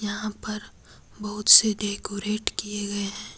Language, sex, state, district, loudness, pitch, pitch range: Hindi, female, Jharkhand, Deoghar, -22 LUFS, 210 Hz, 205-210 Hz